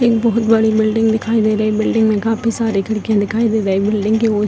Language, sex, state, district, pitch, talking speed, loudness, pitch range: Hindi, female, Bihar, Darbhanga, 220 Hz, 280 wpm, -16 LUFS, 215-225 Hz